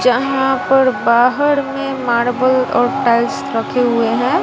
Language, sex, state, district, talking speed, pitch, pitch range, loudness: Hindi, female, Bihar, West Champaran, 135 wpm, 255 Hz, 240-270 Hz, -15 LUFS